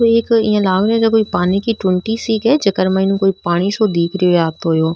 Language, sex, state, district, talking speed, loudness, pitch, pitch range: Rajasthani, female, Rajasthan, Nagaur, 265 wpm, -15 LUFS, 195 Hz, 180-225 Hz